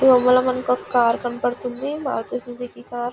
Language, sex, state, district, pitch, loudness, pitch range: Telugu, female, Telangana, Nalgonda, 245 Hz, -21 LUFS, 245-255 Hz